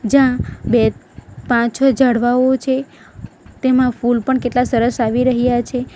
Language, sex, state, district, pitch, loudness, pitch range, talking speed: Gujarati, female, Gujarat, Valsad, 250 Hz, -16 LUFS, 240-260 Hz, 140 wpm